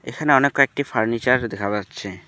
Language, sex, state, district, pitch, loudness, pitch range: Bengali, male, West Bengal, Alipurduar, 115 Hz, -20 LUFS, 105-135 Hz